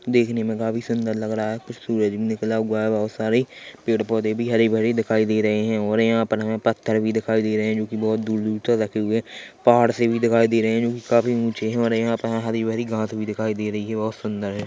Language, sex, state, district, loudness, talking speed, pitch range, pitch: Hindi, male, Chhattisgarh, Korba, -22 LUFS, 280 wpm, 110-115 Hz, 110 Hz